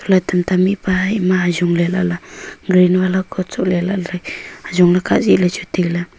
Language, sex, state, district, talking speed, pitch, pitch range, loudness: Wancho, female, Arunachal Pradesh, Longding, 155 wpm, 185 Hz, 175-185 Hz, -16 LUFS